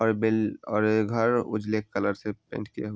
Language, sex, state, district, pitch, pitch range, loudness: Hindi, male, Bihar, Vaishali, 110 Hz, 105-110 Hz, -27 LUFS